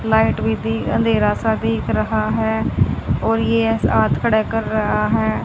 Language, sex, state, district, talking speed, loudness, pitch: Hindi, female, Haryana, Charkhi Dadri, 155 wpm, -18 LUFS, 110 Hz